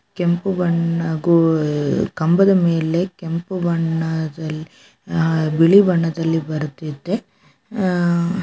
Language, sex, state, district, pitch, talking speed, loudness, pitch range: Kannada, female, Karnataka, Chamarajanagar, 165 Hz, 85 wpm, -18 LUFS, 160-180 Hz